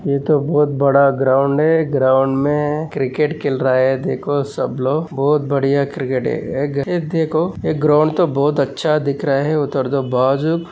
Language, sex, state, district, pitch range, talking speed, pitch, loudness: Hindi, male, Maharashtra, Aurangabad, 135-155 Hz, 185 wpm, 140 Hz, -17 LUFS